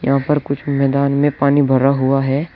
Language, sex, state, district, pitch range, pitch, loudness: Hindi, male, Uttar Pradesh, Shamli, 135-145 Hz, 140 Hz, -16 LUFS